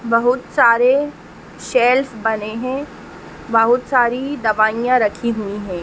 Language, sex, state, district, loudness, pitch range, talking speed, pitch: Hindi, female, Uttar Pradesh, Etah, -17 LUFS, 225-255 Hz, 115 wpm, 240 Hz